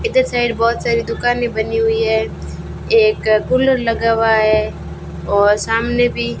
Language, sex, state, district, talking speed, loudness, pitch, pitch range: Hindi, female, Rajasthan, Bikaner, 160 wpm, -16 LUFS, 230 Hz, 220-245 Hz